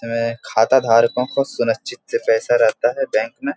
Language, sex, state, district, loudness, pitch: Hindi, male, Bihar, Supaul, -18 LUFS, 135 Hz